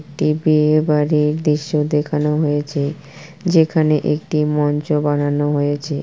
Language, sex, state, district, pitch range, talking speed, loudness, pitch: Bengali, female, West Bengal, Purulia, 145-155 Hz, 100 wpm, -17 LUFS, 150 Hz